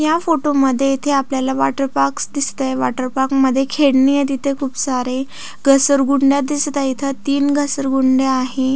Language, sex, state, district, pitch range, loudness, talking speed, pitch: Marathi, female, Maharashtra, Solapur, 265-280 Hz, -17 LUFS, 150 wpm, 270 Hz